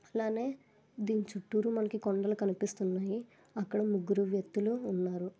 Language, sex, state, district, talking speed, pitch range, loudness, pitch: Telugu, female, Andhra Pradesh, Visakhapatnam, 100 wpm, 195-220 Hz, -34 LUFS, 205 Hz